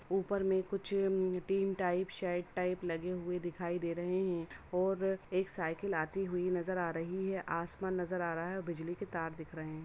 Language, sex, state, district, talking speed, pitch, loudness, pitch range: Hindi, female, Bihar, Samastipur, 180 wpm, 180 Hz, -36 LUFS, 170-190 Hz